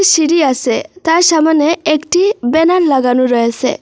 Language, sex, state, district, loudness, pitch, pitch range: Bengali, female, Assam, Hailakandi, -12 LUFS, 315 Hz, 260-335 Hz